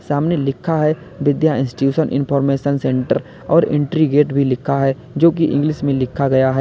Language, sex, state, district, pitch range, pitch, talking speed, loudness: Hindi, male, Uttar Pradesh, Lalitpur, 135-155 Hz, 140 Hz, 180 wpm, -17 LUFS